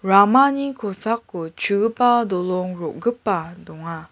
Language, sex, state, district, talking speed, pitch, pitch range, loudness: Garo, female, Meghalaya, West Garo Hills, 85 wpm, 200 Hz, 180-235 Hz, -20 LUFS